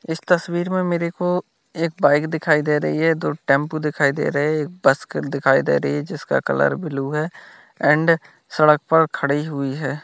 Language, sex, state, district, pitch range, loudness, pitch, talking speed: Hindi, male, Bihar, Kishanganj, 140-165 Hz, -20 LUFS, 150 Hz, 205 wpm